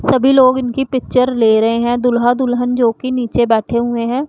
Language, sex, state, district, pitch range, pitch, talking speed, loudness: Hindi, female, Punjab, Pathankot, 235-255 Hz, 245 Hz, 210 wpm, -14 LUFS